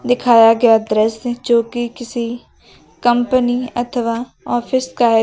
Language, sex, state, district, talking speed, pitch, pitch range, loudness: Hindi, female, Uttar Pradesh, Lucknow, 125 wpm, 240 Hz, 230-245 Hz, -16 LUFS